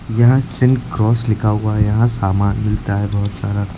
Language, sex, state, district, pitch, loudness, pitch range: Hindi, male, Uttar Pradesh, Lucknow, 105 Hz, -16 LUFS, 100-115 Hz